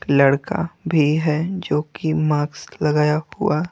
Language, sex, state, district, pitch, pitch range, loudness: Hindi, male, Bihar, Patna, 150 Hz, 150-160 Hz, -20 LUFS